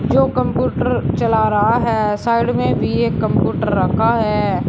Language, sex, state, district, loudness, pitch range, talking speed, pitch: Hindi, male, Uttar Pradesh, Shamli, -17 LUFS, 210-230 Hz, 155 wpm, 225 Hz